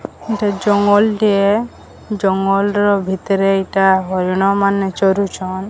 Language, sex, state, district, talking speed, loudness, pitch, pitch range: Odia, female, Odisha, Sambalpur, 95 wpm, -15 LUFS, 195 Hz, 190-205 Hz